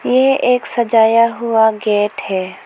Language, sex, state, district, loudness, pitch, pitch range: Hindi, female, Arunachal Pradesh, Lower Dibang Valley, -14 LUFS, 230 Hz, 210-250 Hz